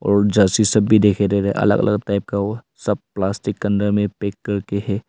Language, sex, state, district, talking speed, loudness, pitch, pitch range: Hindi, male, Arunachal Pradesh, Longding, 215 wpm, -19 LUFS, 100 Hz, 100-105 Hz